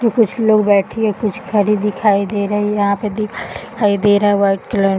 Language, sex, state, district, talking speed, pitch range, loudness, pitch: Hindi, female, Uttar Pradesh, Gorakhpur, 255 wpm, 200-215 Hz, -16 LUFS, 205 Hz